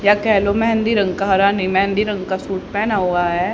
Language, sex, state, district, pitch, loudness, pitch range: Hindi, female, Haryana, Charkhi Dadri, 200 Hz, -17 LUFS, 190-210 Hz